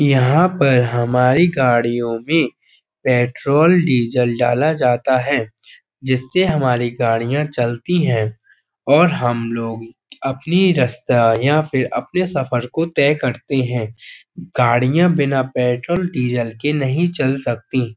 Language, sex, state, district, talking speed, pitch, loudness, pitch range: Hindi, male, Uttar Pradesh, Budaun, 115 wpm, 130 Hz, -17 LUFS, 120-150 Hz